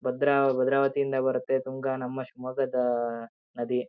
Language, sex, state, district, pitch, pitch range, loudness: Kannada, male, Karnataka, Shimoga, 130 Hz, 125-135 Hz, -27 LUFS